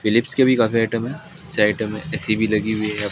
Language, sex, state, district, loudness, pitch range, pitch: Hindi, male, Rajasthan, Bikaner, -20 LUFS, 105-130 Hz, 115 Hz